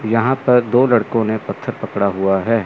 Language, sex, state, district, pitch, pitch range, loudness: Hindi, male, Chandigarh, Chandigarh, 115 Hz, 100-120 Hz, -17 LUFS